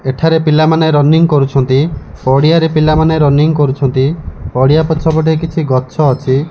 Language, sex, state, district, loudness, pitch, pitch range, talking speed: Odia, male, Odisha, Malkangiri, -11 LUFS, 150 Hz, 135-160 Hz, 120 wpm